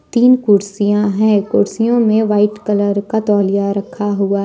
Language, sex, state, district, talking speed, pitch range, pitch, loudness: Hindi, female, Jharkhand, Ranchi, 160 wpm, 200-220 Hz, 205 Hz, -14 LUFS